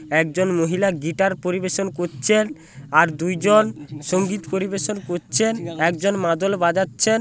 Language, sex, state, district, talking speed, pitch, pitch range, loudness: Bengali, male, West Bengal, Paschim Medinipur, 110 wpm, 180 Hz, 160-195 Hz, -21 LUFS